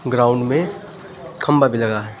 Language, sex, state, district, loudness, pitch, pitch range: Hindi, male, Uttar Pradesh, Lucknow, -18 LUFS, 140 Hz, 120-175 Hz